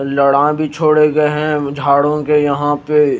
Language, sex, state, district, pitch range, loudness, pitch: Hindi, male, Himachal Pradesh, Shimla, 145-150 Hz, -14 LUFS, 150 Hz